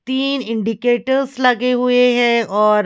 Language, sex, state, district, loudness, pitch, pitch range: Hindi, female, Haryana, Charkhi Dadri, -16 LUFS, 245 Hz, 230-255 Hz